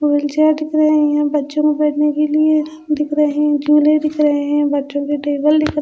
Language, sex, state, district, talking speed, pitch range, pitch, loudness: Hindi, female, Bihar, Katihar, 215 wpm, 295-305 Hz, 300 Hz, -16 LUFS